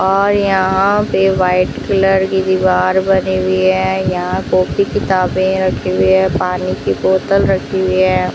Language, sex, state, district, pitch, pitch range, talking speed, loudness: Hindi, female, Rajasthan, Bikaner, 185 Hz, 180-190 Hz, 160 wpm, -14 LUFS